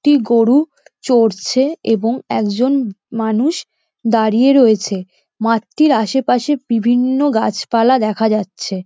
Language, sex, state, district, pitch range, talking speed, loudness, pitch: Bengali, female, West Bengal, Dakshin Dinajpur, 220-265 Hz, 90 wpm, -15 LUFS, 235 Hz